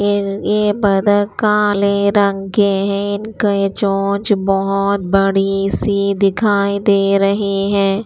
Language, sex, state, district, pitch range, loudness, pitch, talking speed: Hindi, female, Maharashtra, Washim, 195-205 Hz, -15 LUFS, 200 Hz, 120 wpm